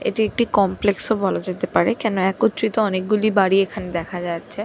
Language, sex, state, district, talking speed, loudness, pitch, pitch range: Bengali, female, West Bengal, Dakshin Dinajpur, 195 wpm, -20 LUFS, 200 Hz, 185-220 Hz